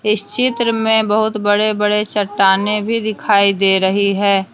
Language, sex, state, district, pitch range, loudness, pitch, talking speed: Hindi, female, Jharkhand, Deoghar, 200-220 Hz, -14 LUFS, 210 Hz, 160 wpm